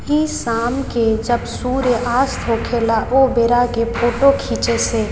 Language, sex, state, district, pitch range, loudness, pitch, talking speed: Maithili, female, Bihar, Samastipur, 230-265 Hz, -17 LUFS, 240 Hz, 150 wpm